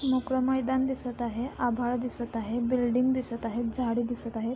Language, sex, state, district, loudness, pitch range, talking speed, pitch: Marathi, female, Maharashtra, Sindhudurg, -29 LUFS, 235-255 Hz, 170 wpm, 245 Hz